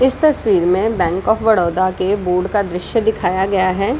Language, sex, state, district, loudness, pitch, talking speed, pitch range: Hindi, female, Bihar, Samastipur, -16 LUFS, 200 Hz, 165 wpm, 185-230 Hz